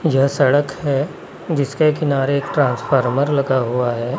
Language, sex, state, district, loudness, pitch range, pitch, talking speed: Hindi, male, Chhattisgarh, Raipur, -18 LUFS, 130-145 Hz, 140 Hz, 145 wpm